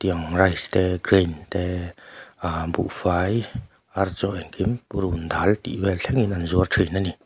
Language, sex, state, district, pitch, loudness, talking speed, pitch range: Mizo, male, Mizoram, Aizawl, 95 Hz, -23 LUFS, 150 wpm, 90-100 Hz